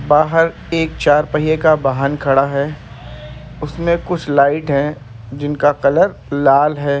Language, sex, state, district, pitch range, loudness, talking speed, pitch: Hindi, male, Uttar Pradesh, Etah, 140-150 Hz, -15 LUFS, 135 wpm, 145 Hz